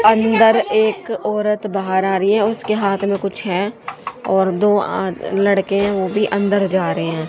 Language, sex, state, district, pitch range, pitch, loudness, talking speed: Hindi, female, Haryana, Jhajjar, 195-210 Hz, 200 Hz, -17 LUFS, 180 wpm